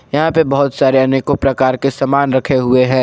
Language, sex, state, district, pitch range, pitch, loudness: Hindi, male, Jharkhand, Garhwa, 130-140 Hz, 135 Hz, -14 LUFS